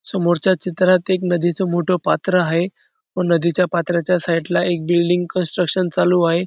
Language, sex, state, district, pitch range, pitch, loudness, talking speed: Marathi, male, Maharashtra, Dhule, 175-185 Hz, 180 Hz, -18 LUFS, 175 wpm